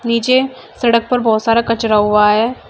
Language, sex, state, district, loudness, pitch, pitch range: Hindi, female, Uttar Pradesh, Shamli, -14 LUFS, 230 Hz, 220-245 Hz